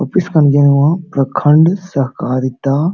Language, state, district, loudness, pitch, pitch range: Santali, Jharkhand, Sahebganj, -13 LUFS, 145 Hz, 140-170 Hz